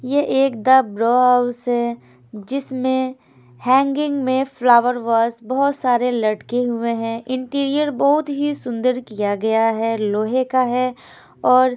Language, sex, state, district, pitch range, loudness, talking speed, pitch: Hindi, female, Himachal Pradesh, Shimla, 230-265 Hz, -19 LUFS, 140 wpm, 250 Hz